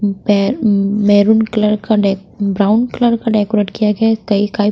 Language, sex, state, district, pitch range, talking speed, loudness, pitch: Hindi, female, Bihar, Patna, 205-220 Hz, 165 wpm, -14 LUFS, 210 Hz